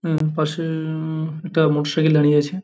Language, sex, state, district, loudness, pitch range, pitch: Bengali, male, West Bengal, Paschim Medinipur, -20 LUFS, 155-160 Hz, 155 Hz